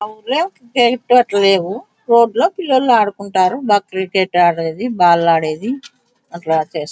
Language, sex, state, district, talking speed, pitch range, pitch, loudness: Telugu, female, Andhra Pradesh, Anantapur, 105 wpm, 180-245 Hz, 210 Hz, -15 LUFS